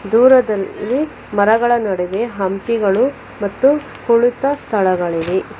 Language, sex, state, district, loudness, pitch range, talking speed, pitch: Kannada, female, Karnataka, Bangalore, -16 LUFS, 195-245 Hz, 75 wpm, 215 Hz